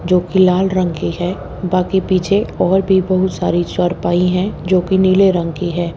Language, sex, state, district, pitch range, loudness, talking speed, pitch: Hindi, female, Haryana, Jhajjar, 175-190 Hz, -15 LUFS, 180 wpm, 185 Hz